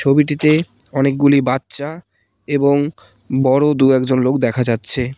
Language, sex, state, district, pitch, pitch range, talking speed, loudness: Bengali, male, West Bengal, Cooch Behar, 135 Hz, 125-145 Hz, 115 wpm, -16 LUFS